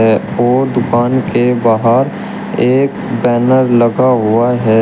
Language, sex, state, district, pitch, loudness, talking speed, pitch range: Hindi, male, Uttar Pradesh, Shamli, 120 Hz, -12 LUFS, 110 wpm, 115-130 Hz